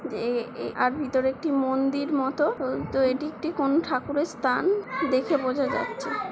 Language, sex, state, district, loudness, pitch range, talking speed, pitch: Bengali, female, West Bengal, Kolkata, -26 LUFS, 260-295 Hz, 160 wpm, 275 Hz